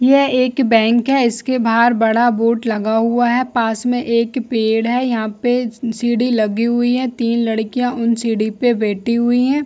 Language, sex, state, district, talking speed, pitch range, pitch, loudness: Hindi, female, Chhattisgarh, Bilaspur, 185 wpm, 225-245 Hz, 235 Hz, -16 LUFS